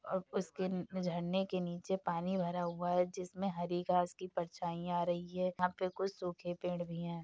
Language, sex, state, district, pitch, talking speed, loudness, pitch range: Hindi, female, Uttar Pradesh, Jyotiba Phule Nagar, 180 Hz, 200 wpm, -38 LUFS, 175-185 Hz